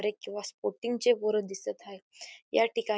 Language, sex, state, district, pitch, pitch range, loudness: Marathi, female, Maharashtra, Dhule, 210 Hz, 195-230 Hz, -31 LUFS